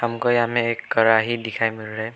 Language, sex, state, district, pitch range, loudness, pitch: Hindi, male, Arunachal Pradesh, Lower Dibang Valley, 110-120 Hz, -21 LUFS, 115 Hz